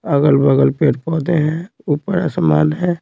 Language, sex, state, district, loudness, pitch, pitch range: Hindi, male, Bihar, Patna, -16 LUFS, 155 Hz, 145-170 Hz